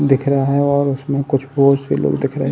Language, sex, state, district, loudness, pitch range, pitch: Hindi, male, Uttar Pradesh, Muzaffarnagar, -16 LUFS, 135-140 Hz, 140 Hz